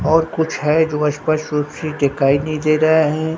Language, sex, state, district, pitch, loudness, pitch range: Hindi, male, Bihar, Katihar, 155 Hz, -17 LUFS, 150-160 Hz